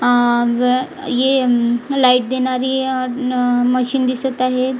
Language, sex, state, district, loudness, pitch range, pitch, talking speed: Marathi, female, Maharashtra, Gondia, -16 LUFS, 245-260 Hz, 255 Hz, 150 wpm